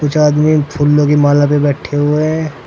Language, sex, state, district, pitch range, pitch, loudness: Hindi, male, Uttar Pradesh, Saharanpur, 145-150 Hz, 150 Hz, -12 LUFS